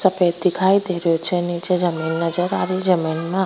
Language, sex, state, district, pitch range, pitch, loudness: Rajasthani, female, Rajasthan, Churu, 170-185 Hz, 175 Hz, -19 LUFS